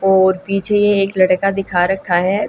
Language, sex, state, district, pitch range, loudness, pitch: Hindi, female, Haryana, Jhajjar, 185-195 Hz, -15 LUFS, 195 Hz